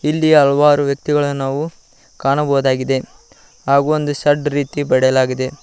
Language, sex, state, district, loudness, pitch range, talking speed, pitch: Kannada, male, Karnataka, Koppal, -16 LUFS, 135-150 Hz, 105 wpm, 145 Hz